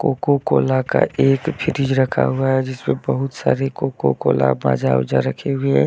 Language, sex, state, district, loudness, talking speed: Hindi, male, Jharkhand, Deoghar, -19 LUFS, 165 wpm